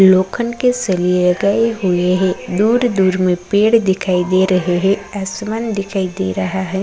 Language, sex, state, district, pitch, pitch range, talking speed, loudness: Hindi, female, Uttarakhand, Tehri Garhwal, 190 Hz, 180-210 Hz, 160 wpm, -16 LUFS